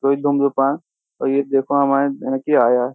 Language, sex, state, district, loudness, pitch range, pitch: Hindi, male, Uttar Pradesh, Jyotiba Phule Nagar, -18 LUFS, 135-140 Hz, 140 Hz